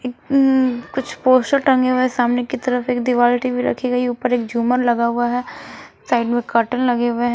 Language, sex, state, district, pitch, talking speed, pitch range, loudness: Hindi, female, Himachal Pradesh, Shimla, 245 Hz, 220 wpm, 240-255 Hz, -18 LUFS